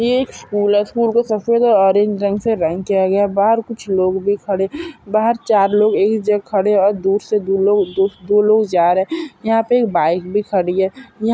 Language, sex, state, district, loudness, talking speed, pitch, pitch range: Hindi, male, Bihar, Purnia, -16 LUFS, 220 wpm, 205 Hz, 195-225 Hz